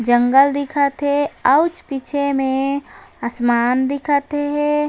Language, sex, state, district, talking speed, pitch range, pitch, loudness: Chhattisgarhi, female, Chhattisgarh, Raigarh, 110 wpm, 265-290 Hz, 280 Hz, -18 LUFS